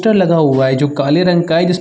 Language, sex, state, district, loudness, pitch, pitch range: Hindi, male, Uttar Pradesh, Varanasi, -13 LUFS, 165 Hz, 145-180 Hz